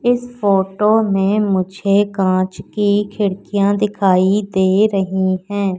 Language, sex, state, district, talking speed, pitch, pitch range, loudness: Hindi, female, Madhya Pradesh, Katni, 115 wpm, 200 Hz, 190-205 Hz, -16 LUFS